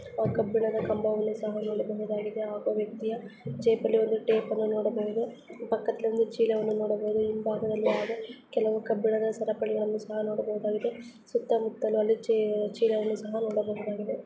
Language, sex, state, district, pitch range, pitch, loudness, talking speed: Kannada, female, Karnataka, Bijapur, 215-225 Hz, 220 Hz, -29 LUFS, 115 wpm